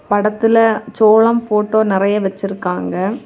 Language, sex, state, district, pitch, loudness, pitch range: Tamil, female, Tamil Nadu, Kanyakumari, 210 Hz, -15 LUFS, 195-225 Hz